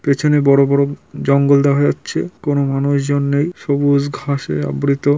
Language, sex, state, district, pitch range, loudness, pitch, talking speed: Bengali, male, West Bengal, North 24 Parganas, 140-145 Hz, -16 LUFS, 140 Hz, 150 wpm